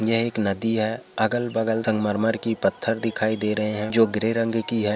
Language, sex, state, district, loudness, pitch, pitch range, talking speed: Hindi, male, Andhra Pradesh, Chittoor, -22 LUFS, 110 Hz, 110-115 Hz, 230 wpm